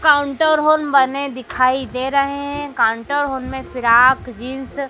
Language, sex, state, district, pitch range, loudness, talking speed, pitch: Hindi, female, Madhya Pradesh, Dhar, 255-285 Hz, -17 LUFS, 160 wpm, 270 Hz